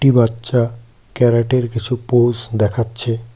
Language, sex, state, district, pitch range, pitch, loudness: Bengali, male, West Bengal, Cooch Behar, 115-125 Hz, 115 Hz, -17 LUFS